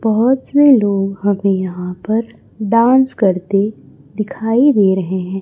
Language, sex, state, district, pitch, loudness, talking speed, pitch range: Hindi, male, Chhattisgarh, Raipur, 205 Hz, -15 LUFS, 135 wpm, 195-230 Hz